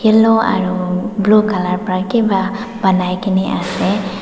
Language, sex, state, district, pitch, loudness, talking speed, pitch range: Nagamese, female, Nagaland, Dimapur, 195 Hz, -15 LUFS, 130 wpm, 185-220 Hz